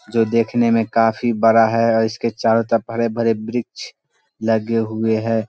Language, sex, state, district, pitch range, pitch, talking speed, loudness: Hindi, male, Bihar, Vaishali, 110-115 Hz, 115 Hz, 165 wpm, -18 LUFS